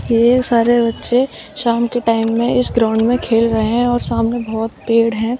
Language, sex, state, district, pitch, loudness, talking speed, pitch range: Hindi, female, Uttar Pradesh, Shamli, 235 Hz, -16 LUFS, 200 wpm, 225-245 Hz